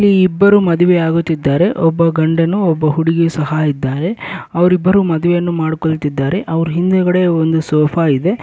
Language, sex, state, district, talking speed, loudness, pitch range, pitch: Kannada, male, Karnataka, Bellary, 135 wpm, -14 LUFS, 160-180 Hz, 165 Hz